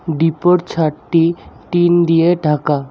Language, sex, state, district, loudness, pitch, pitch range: Bengali, male, West Bengal, Alipurduar, -15 LUFS, 165 Hz, 155-175 Hz